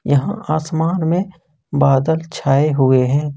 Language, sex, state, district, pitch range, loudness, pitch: Hindi, male, Jharkhand, Ranchi, 140-160 Hz, -17 LUFS, 150 Hz